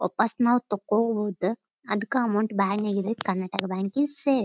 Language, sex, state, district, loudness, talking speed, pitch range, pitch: Kannada, female, Karnataka, Dharwad, -26 LUFS, 160 wpm, 195-235 Hz, 210 Hz